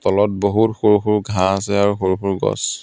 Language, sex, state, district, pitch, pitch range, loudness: Assamese, male, Assam, Kamrup Metropolitan, 100 Hz, 95-105 Hz, -18 LUFS